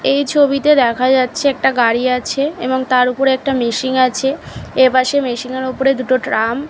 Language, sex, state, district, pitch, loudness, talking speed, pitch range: Bengali, female, West Bengal, Paschim Medinipur, 260 Hz, -15 LUFS, 180 wpm, 250-275 Hz